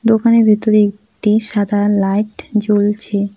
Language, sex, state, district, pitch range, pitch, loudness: Bengali, female, West Bengal, Cooch Behar, 205-215 Hz, 210 Hz, -15 LUFS